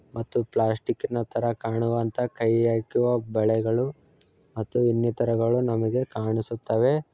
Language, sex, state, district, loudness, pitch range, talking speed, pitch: Kannada, male, Karnataka, Chamarajanagar, -25 LUFS, 110-120 Hz, 110 wpm, 115 Hz